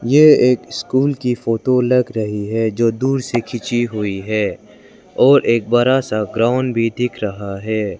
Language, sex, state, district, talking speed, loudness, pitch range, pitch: Hindi, male, Arunachal Pradesh, Lower Dibang Valley, 170 wpm, -17 LUFS, 110-125 Hz, 115 Hz